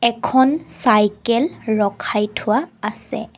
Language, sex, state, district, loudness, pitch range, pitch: Assamese, female, Assam, Kamrup Metropolitan, -19 LUFS, 210-260 Hz, 230 Hz